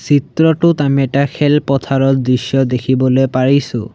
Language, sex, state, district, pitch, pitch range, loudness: Assamese, male, Assam, Sonitpur, 135 Hz, 130-145 Hz, -14 LUFS